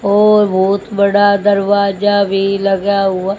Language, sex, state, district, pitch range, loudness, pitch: Hindi, female, Haryana, Rohtak, 195-205 Hz, -13 LUFS, 200 Hz